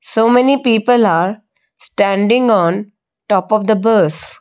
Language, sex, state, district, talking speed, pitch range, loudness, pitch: English, female, Odisha, Malkangiri, 135 wpm, 200-225 Hz, -13 LUFS, 215 Hz